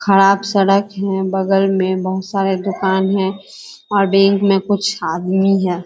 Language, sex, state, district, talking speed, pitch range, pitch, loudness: Hindi, female, Bihar, Kishanganj, 165 wpm, 190-195 Hz, 195 Hz, -16 LUFS